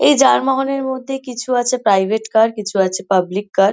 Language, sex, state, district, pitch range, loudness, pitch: Bengali, female, West Bengal, North 24 Parganas, 200-265 Hz, -17 LUFS, 225 Hz